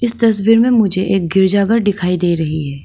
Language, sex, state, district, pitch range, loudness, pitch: Hindi, female, Arunachal Pradesh, Lower Dibang Valley, 180-225 Hz, -13 LUFS, 195 Hz